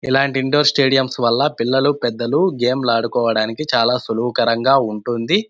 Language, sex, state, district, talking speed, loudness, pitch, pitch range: Telugu, male, Andhra Pradesh, Anantapur, 155 wpm, -17 LUFS, 125 Hz, 115-135 Hz